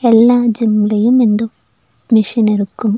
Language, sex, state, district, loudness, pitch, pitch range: Tamil, female, Tamil Nadu, Nilgiris, -13 LUFS, 225 Hz, 210-235 Hz